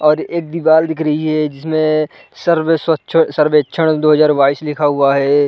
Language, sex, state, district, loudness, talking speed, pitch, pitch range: Hindi, male, Uttar Pradesh, Varanasi, -14 LUFS, 175 wpm, 155 Hz, 150-160 Hz